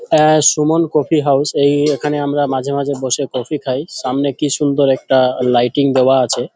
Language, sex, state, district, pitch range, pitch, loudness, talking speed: Bengali, male, West Bengal, Dakshin Dinajpur, 130-150 Hz, 140 Hz, -15 LUFS, 175 wpm